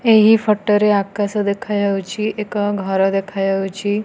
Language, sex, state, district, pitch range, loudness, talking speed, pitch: Odia, female, Odisha, Nuapada, 195-210 Hz, -17 LUFS, 150 wpm, 205 Hz